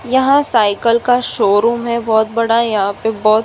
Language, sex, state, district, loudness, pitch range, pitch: Hindi, female, Uttar Pradesh, Muzaffarnagar, -14 LUFS, 215-235 Hz, 230 Hz